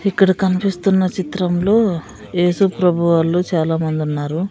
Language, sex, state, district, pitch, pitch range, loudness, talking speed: Telugu, female, Andhra Pradesh, Sri Satya Sai, 180 Hz, 165-190 Hz, -17 LUFS, 95 wpm